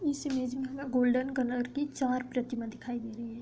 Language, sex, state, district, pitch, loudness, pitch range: Hindi, female, Uttar Pradesh, Budaun, 255 Hz, -33 LUFS, 245-265 Hz